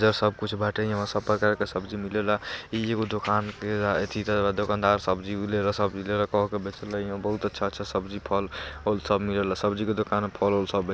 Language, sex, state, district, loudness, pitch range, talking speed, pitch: Bhojpuri, male, Bihar, East Champaran, -27 LUFS, 100-105 Hz, 200 wpm, 105 Hz